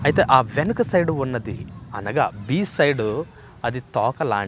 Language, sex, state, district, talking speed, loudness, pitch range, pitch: Telugu, male, Andhra Pradesh, Manyam, 120 wpm, -22 LUFS, 110-160 Hz, 130 Hz